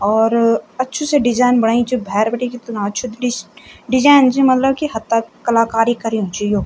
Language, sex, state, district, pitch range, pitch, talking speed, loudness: Garhwali, female, Uttarakhand, Tehri Garhwal, 225-255 Hz, 235 Hz, 180 wpm, -16 LUFS